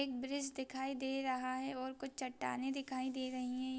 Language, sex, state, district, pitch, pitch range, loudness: Hindi, female, Maharashtra, Dhule, 260 Hz, 255-270 Hz, -41 LUFS